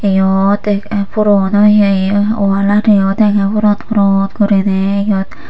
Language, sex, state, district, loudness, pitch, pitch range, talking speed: Chakma, female, Tripura, Unakoti, -12 LUFS, 200 Hz, 195-205 Hz, 100 wpm